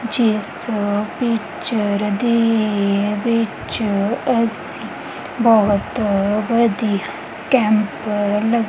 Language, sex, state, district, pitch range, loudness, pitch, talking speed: Punjabi, female, Punjab, Kapurthala, 205-230 Hz, -18 LUFS, 215 Hz, 70 wpm